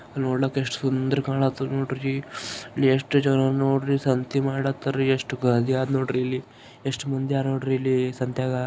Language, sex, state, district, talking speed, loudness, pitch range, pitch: Kannada, male, Karnataka, Gulbarga, 130 wpm, -24 LUFS, 130-135 Hz, 135 Hz